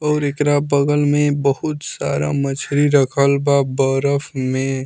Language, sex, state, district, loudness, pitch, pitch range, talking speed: Bhojpuri, male, Bihar, Muzaffarpur, -18 LUFS, 140 Hz, 135-145 Hz, 135 wpm